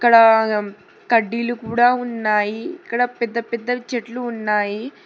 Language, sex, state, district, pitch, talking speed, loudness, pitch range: Telugu, female, Telangana, Hyderabad, 235 Hz, 105 wpm, -19 LUFS, 220-245 Hz